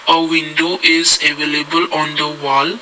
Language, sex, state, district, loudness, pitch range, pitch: English, male, Assam, Kamrup Metropolitan, -13 LUFS, 150-170 Hz, 155 Hz